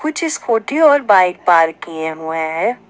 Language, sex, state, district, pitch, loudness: Hindi, female, Jharkhand, Ranchi, 185 Hz, -15 LUFS